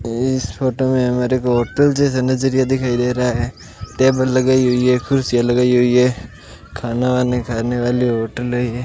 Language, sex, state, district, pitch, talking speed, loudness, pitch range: Hindi, male, Rajasthan, Bikaner, 125 Hz, 190 wpm, -17 LUFS, 120-130 Hz